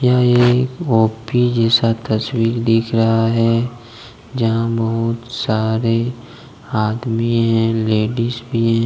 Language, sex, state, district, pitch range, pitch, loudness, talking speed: Hindi, male, Jharkhand, Deoghar, 115-120 Hz, 115 Hz, -17 LUFS, 110 wpm